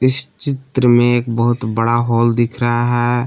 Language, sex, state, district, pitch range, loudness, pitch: Hindi, male, Jharkhand, Palamu, 120-125 Hz, -15 LUFS, 120 Hz